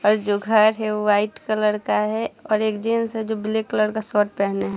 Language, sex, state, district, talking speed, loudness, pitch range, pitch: Hindi, female, Bihar, Saharsa, 250 wpm, -21 LUFS, 210-220 Hz, 215 Hz